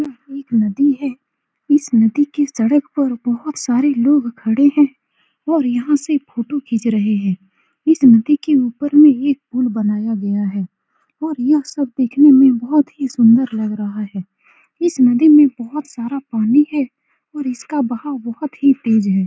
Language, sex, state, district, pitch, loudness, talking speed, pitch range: Hindi, female, Bihar, Saran, 270 Hz, -16 LUFS, 175 wpm, 230-290 Hz